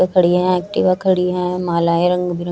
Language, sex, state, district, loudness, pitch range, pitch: Hindi, female, Chhattisgarh, Raipur, -17 LUFS, 175-185 Hz, 180 Hz